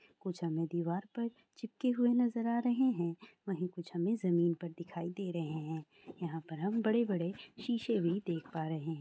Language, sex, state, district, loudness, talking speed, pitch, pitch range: Hindi, female, Andhra Pradesh, Chittoor, -36 LUFS, 200 wpm, 180 Hz, 170-230 Hz